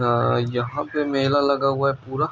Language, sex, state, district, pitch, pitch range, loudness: Hindi, male, Andhra Pradesh, Anantapur, 135 Hz, 120-145 Hz, -22 LUFS